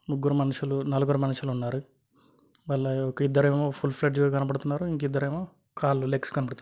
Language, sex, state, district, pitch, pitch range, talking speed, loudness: Telugu, male, Telangana, Karimnagar, 140 Hz, 135-145 Hz, 135 wpm, -27 LUFS